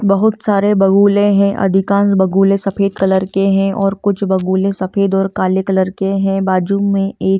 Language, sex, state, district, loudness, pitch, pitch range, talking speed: Hindi, female, Delhi, New Delhi, -14 LUFS, 195 Hz, 190-200 Hz, 180 wpm